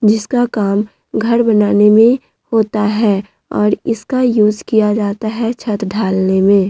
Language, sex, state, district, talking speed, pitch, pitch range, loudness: Hindi, female, Bihar, Vaishali, 145 wpm, 215 Hz, 205-230 Hz, -14 LUFS